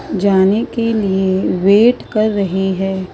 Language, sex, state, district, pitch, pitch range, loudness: Hindi, female, Maharashtra, Mumbai Suburban, 195 Hz, 190-215 Hz, -15 LUFS